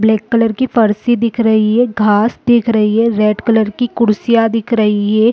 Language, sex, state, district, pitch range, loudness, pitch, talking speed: Hindi, female, Chhattisgarh, Rajnandgaon, 215-235 Hz, -13 LUFS, 225 Hz, 205 wpm